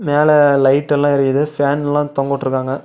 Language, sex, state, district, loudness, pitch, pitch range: Tamil, male, Tamil Nadu, Namakkal, -15 LUFS, 145 Hz, 135-145 Hz